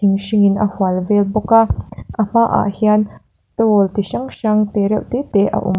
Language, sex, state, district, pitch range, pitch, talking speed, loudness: Mizo, female, Mizoram, Aizawl, 200-220 Hz, 210 Hz, 195 wpm, -16 LUFS